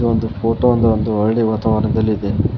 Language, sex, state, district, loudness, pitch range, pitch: Kannada, male, Karnataka, Koppal, -16 LUFS, 110-115 Hz, 110 Hz